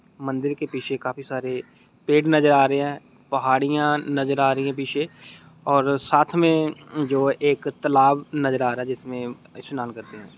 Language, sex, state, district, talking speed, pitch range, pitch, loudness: Hindi, male, Bihar, Muzaffarpur, 175 wpm, 130-145 Hz, 140 Hz, -22 LUFS